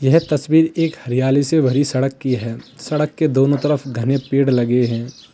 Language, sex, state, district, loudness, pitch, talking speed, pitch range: Hindi, male, Uttar Pradesh, Lalitpur, -17 LUFS, 135 Hz, 190 wpm, 130-150 Hz